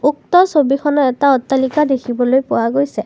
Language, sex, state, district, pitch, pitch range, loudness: Assamese, female, Assam, Kamrup Metropolitan, 275 Hz, 255-290 Hz, -14 LUFS